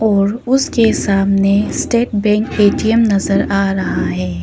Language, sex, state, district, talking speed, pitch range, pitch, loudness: Hindi, female, Arunachal Pradesh, Papum Pare, 135 wpm, 195-220 Hz, 200 Hz, -14 LUFS